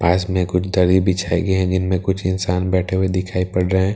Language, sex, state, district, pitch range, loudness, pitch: Hindi, male, Bihar, Katihar, 90-95 Hz, -19 LUFS, 95 Hz